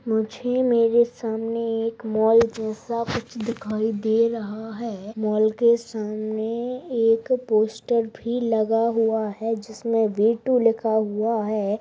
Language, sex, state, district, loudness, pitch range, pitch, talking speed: Hindi, female, Bihar, Saharsa, -23 LUFS, 220-235 Hz, 225 Hz, 130 wpm